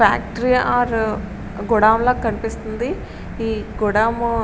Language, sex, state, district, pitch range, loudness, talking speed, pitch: Telugu, female, Andhra Pradesh, Srikakulam, 215-235 Hz, -19 LUFS, 110 wpm, 225 Hz